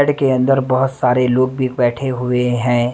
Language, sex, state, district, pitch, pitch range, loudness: Hindi, male, Delhi, New Delhi, 130 Hz, 125-135 Hz, -16 LUFS